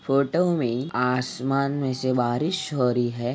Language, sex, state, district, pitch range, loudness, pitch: Hindi, male, Jharkhand, Jamtara, 125-140 Hz, -24 LUFS, 130 Hz